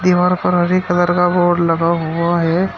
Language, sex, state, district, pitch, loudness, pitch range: Hindi, male, Uttar Pradesh, Shamli, 175 Hz, -15 LUFS, 170-180 Hz